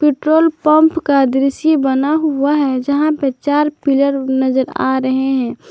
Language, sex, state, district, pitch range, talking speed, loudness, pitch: Hindi, male, Jharkhand, Garhwa, 265-305 Hz, 160 wpm, -14 LUFS, 280 Hz